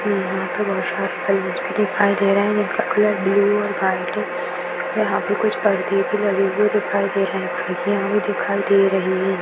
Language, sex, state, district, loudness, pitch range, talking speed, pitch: Hindi, female, Uttar Pradesh, Jalaun, -20 LUFS, 185-205 Hz, 210 wpm, 195 Hz